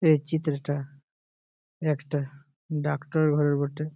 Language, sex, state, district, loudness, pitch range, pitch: Bengali, male, West Bengal, Jalpaiguri, -27 LUFS, 140-150 Hz, 145 Hz